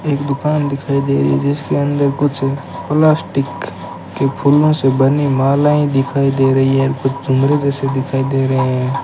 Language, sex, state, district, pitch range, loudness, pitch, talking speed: Hindi, male, Rajasthan, Bikaner, 135-145 Hz, -15 LUFS, 140 Hz, 175 wpm